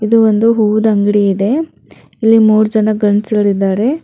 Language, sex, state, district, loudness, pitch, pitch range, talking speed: Kannada, female, Karnataka, Bangalore, -12 LUFS, 215 Hz, 205-225 Hz, 120 wpm